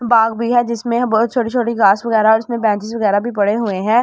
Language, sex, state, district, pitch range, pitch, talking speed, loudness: Hindi, female, Delhi, New Delhi, 215-235 Hz, 230 Hz, 250 wpm, -16 LUFS